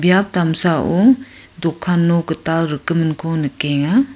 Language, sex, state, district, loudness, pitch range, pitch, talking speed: Garo, female, Meghalaya, West Garo Hills, -17 LUFS, 160-180 Hz, 170 Hz, 100 wpm